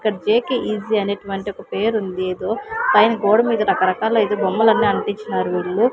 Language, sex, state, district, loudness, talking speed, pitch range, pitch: Telugu, female, Andhra Pradesh, Sri Satya Sai, -19 LUFS, 160 wpm, 195-225 Hz, 215 Hz